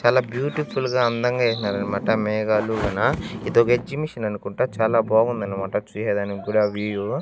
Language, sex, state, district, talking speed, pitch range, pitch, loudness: Telugu, male, Andhra Pradesh, Annamaya, 140 wpm, 105-120 Hz, 110 Hz, -22 LUFS